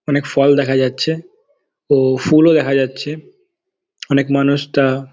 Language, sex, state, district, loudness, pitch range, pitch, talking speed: Bengali, male, West Bengal, Dakshin Dinajpur, -15 LUFS, 135-160 Hz, 140 Hz, 140 wpm